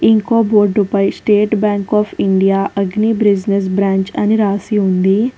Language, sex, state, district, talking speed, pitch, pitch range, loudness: Telugu, female, Telangana, Hyderabad, 135 wpm, 205 Hz, 195-215 Hz, -14 LUFS